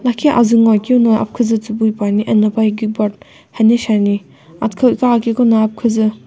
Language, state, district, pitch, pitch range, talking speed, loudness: Sumi, Nagaland, Kohima, 220 Hz, 215-235 Hz, 145 wpm, -14 LUFS